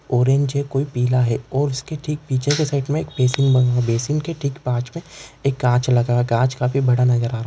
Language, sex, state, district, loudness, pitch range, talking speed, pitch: Hindi, male, Maharashtra, Chandrapur, -20 LUFS, 125-140 Hz, 250 wpm, 135 Hz